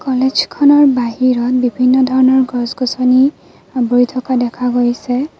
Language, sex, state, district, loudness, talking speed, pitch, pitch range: Assamese, female, Assam, Kamrup Metropolitan, -13 LUFS, 100 wpm, 255 Hz, 245-260 Hz